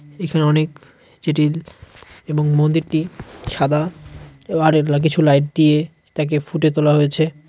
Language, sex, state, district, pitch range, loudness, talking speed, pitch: Bengali, male, West Bengal, Cooch Behar, 150-160 Hz, -18 LUFS, 120 wpm, 155 Hz